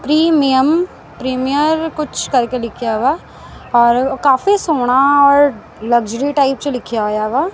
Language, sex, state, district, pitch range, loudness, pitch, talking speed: Punjabi, female, Punjab, Kapurthala, 240-300 Hz, -15 LUFS, 270 Hz, 110 wpm